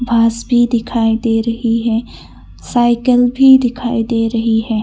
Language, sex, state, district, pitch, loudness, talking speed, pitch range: Hindi, female, Arunachal Pradesh, Longding, 230 Hz, -14 LUFS, 150 wpm, 230-240 Hz